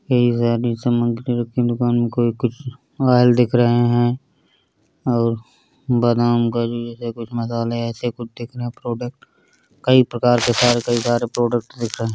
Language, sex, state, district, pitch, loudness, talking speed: Hindi, male, Uttar Pradesh, Varanasi, 120 Hz, -19 LUFS, 175 wpm